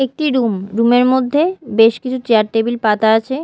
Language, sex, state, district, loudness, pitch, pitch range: Bengali, female, Odisha, Malkangiri, -15 LUFS, 240 Hz, 225-260 Hz